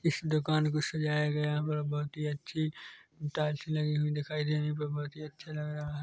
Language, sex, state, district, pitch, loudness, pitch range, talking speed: Hindi, male, Chhattisgarh, Korba, 150 Hz, -33 LUFS, 150-155 Hz, 210 wpm